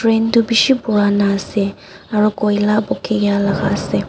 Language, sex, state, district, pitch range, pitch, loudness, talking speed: Nagamese, female, Nagaland, Dimapur, 205-225 Hz, 210 Hz, -16 LUFS, 145 wpm